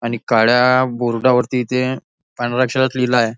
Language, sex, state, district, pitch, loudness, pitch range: Marathi, male, Maharashtra, Nagpur, 125 Hz, -16 LUFS, 120-130 Hz